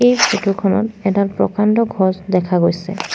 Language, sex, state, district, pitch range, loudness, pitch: Assamese, female, Assam, Sonitpur, 185-215 Hz, -16 LUFS, 195 Hz